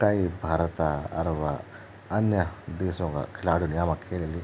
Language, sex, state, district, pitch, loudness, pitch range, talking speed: Garhwali, male, Uttarakhand, Tehri Garhwal, 85 Hz, -28 LUFS, 80-95 Hz, 160 wpm